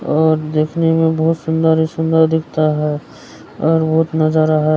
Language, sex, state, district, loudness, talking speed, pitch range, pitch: Hindi, male, Bihar, Kishanganj, -15 LUFS, 150 wpm, 155-160 Hz, 160 Hz